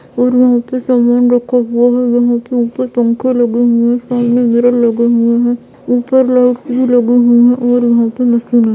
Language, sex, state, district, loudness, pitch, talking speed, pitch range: Hindi, female, Bihar, Purnia, -11 LUFS, 245 Hz, 185 wpm, 240-245 Hz